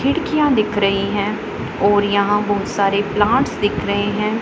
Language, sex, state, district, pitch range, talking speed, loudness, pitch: Hindi, female, Punjab, Pathankot, 200-210 Hz, 165 wpm, -18 LUFS, 205 Hz